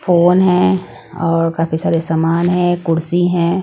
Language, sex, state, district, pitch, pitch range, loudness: Hindi, female, Punjab, Pathankot, 170 Hz, 165-175 Hz, -15 LUFS